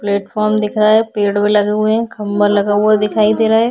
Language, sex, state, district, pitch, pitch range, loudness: Hindi, female, Bihar, Vaishali, 210 Hz, 205-215 Hz, -14 LUFS